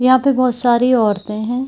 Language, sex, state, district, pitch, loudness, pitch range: Hindi, female, Bihar, Purnia, 245 Hz, -15 LUFS, 220-255 Hz